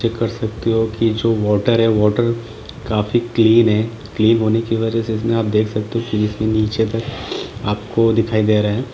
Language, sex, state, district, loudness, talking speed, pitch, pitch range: Hindi, male, Jharkhand, Sahebganj, -17 LUFS, 155 wpm, 110 Hz, 110-115 Hz